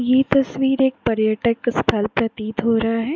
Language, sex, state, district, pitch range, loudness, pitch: Hindi, female, Jharkhand, Jamtara, 225-265 Hz, -19 LUFS, 230 Hz